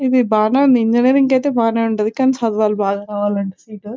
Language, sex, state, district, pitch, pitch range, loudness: Telugu, female, Telangana, Nalgonda, 225 Hz, 210-260 Hz, -16 LUFS